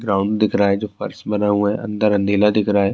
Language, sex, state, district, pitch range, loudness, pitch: Urdu, male, Bihar, Saharsa, 100-105 Hz, -18 LUFS, 105 Hz